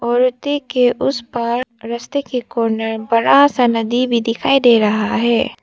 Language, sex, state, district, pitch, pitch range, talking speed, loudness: Hindi, female, Arunachal Pradesh, Papum Pare, 235 Hz, 230-255 Hz, 160 wpm, -16 LUFS